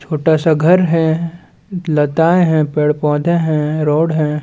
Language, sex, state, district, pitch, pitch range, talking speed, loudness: Chhattisgarhi, male, Chhattisgarh, Balrampur, 160 Hz, 150-170 Hz, 135 wpm, -14 LUFS